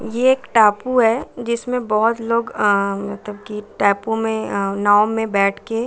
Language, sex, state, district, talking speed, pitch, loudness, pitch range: Hindi, female, Bihar, Saran, 185 wpm, 220 Hz, -18 LUFS, 205-230 Hz